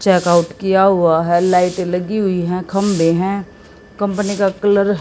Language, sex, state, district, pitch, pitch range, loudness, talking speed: Hindi, female, Haryana, Jhajjar, 190 Hz, 180-200 Hz, -16 LUFS, 180 wpm